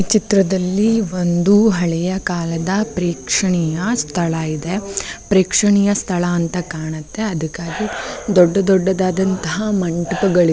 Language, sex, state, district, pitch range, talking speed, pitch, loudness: Kannada, female, Karnataka, Bellary, 170-200 Hz, 90 wpm, 185 Hz, -17 LUFS